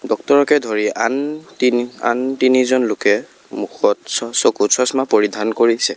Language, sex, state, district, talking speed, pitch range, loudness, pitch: Assamese, male, Assam, Kamrup Metropolitan, 130 wpm, 115-130 Hz, -17 LUFS, 125 Hz